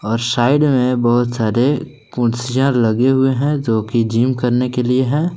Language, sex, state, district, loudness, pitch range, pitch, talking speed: Hindi, male, Jharkhand, Palamu, -16 LUFS, 120-135 Hz, 125 Hz, 180 wpm